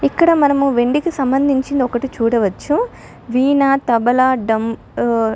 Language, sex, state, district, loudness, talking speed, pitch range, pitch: Telugu, female, Telangana, Karimnagar, -16 LUFS, 135 wpm, 235-280 Hz, 260 Hz